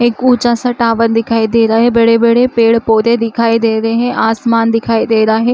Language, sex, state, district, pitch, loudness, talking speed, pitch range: Chhattisgarhi, female, Chhattisgarh, Rajnandgaon, 230 Hz, -11 LUFS, 205 wpm, 225-235 Hz